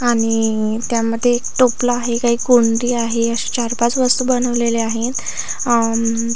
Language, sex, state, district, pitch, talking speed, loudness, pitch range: Marathi, female, Maharashtra, Aurangabad, 235 Hz, 140 wpm, -17 LUFS, 230-245 Hz